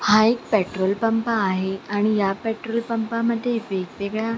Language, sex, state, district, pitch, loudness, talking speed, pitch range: Marathi, female, Maharashtra, Sindhudurg, 220 Hz, -22 LUFS, 165 wpm, 195-230 Hz